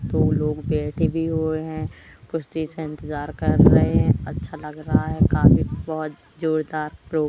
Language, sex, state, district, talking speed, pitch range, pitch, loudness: Hindi, female, Madhya Pradesh, Katni, 175 wpm, 150-160 Hz, 155 Hz, -22 LUFS